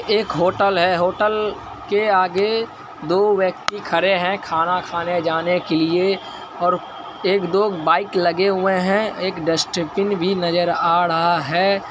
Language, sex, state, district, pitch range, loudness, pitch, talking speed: Hindi, male, Bihar, Araria, 170-195 Hz, -19 LUFS, 185 Hz, 145 wpm